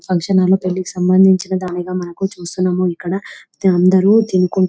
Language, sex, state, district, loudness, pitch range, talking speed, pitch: Telugu, female, Telangana, Nalgonda, -16 LUFS, 180-190 Hz, 140 wpm, 185 Hz